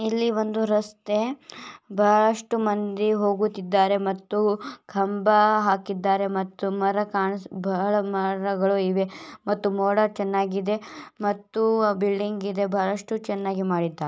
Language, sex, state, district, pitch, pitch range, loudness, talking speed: Kannada, female, Karnataka, Bellary, 200 Hz, 195-210 Hz, -24 LUFS, 100 wpm